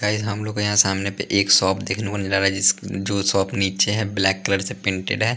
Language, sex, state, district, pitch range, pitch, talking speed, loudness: Hindi, male, Punjab, Pathankot, 95-105 Hz, 100 Hz, 270 wpm, -20 LUFS